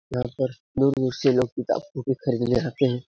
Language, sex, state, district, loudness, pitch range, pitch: Hindi, male, Bihar, Supaul, -24 LUFS, 125-135 Hz, 130 Hz